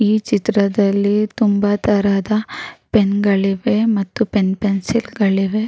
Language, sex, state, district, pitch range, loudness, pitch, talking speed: Kannada, female, Karnataka, Raichur, 200-215 Hz, -17 LUFS, 205 Hz, 105 wpm